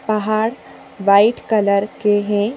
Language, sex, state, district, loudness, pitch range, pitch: Hindi, female, Madhya Pradesh, Bhopal, -17 LUFS, 205-220 Hz, 210 Hz